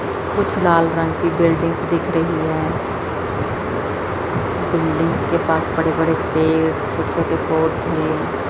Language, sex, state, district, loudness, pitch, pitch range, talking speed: Hindi, female, Chandigarh, Chandigarh, -19 LUFS, 165 Hz, 160-170 Hz, 115 wpm